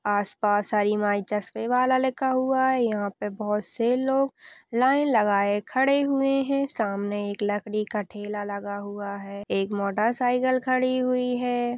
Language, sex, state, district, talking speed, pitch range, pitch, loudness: Hindi, female, Maharashtra, Solapur, 170 wpm, 205-255 Hz, 220 Hz, -25 LUFS